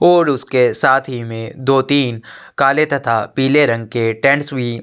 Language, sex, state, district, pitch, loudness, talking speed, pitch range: Hindi, male, Chhattisgarh, Sukma, 135 Hz, -15 LUFS, 185 wpm, 115-145 Hz